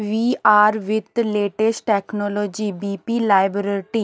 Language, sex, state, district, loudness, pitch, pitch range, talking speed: Hindi, male, Odisha, Nuapada, -19 LUFS, 210 Hz, 200-220 Hz, 105 wpm